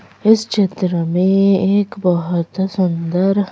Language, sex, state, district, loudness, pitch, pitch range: Hindi, female, Madhya Pradesh, Bhopal, -16 LUFS, 190 Hz, 180-200 Hz